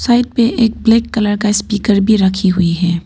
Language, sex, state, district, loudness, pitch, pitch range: Hindi, female, Arunachal Pradesh, Papum Pare, -13 LUFS, 210 Hz, 190-230 Hz